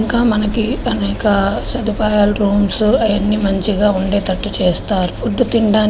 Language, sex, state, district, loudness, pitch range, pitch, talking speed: Telugu, female, Andhra Pradesh, Srikakulam, -15 LUFS, 200-220 Hz, 210 Hz, 120 wpm